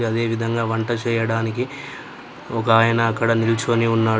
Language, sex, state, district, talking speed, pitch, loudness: Telugu, male, Telangana, Adilabad, 115 wpm, 115 Hz, -20 LUFS